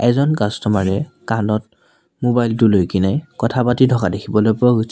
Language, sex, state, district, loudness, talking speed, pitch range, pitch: Assamese, male, Assam, Sonitpur, -17 LUFS, 170 wpm, 105-125 Hz, 115 Hz